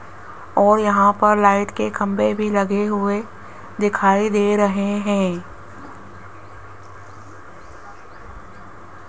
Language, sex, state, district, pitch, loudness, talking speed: Hindi, female, Rajasthan, Jaipur, 175 Hz, -18 LUFS, 85 wpm